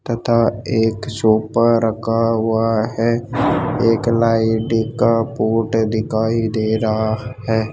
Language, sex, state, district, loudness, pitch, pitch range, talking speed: Hindi, male, Rajasthan, Jaipur, -18 LUFS, 115 Hz, 110-115 Hz, 110 wpm